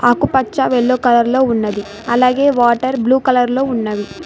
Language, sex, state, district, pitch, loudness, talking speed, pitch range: Telugu, female, Telangana, Mahabubabad, 250 Hz, -14 LUFS, 125 wpm, 235-260 Hz